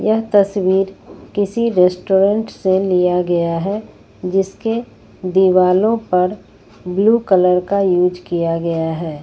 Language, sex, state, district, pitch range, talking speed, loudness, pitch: Hindi, female, Jharkhand, Ranchi, 180-200 Hz, 115 wpm, -16 LUFS, 185 Hz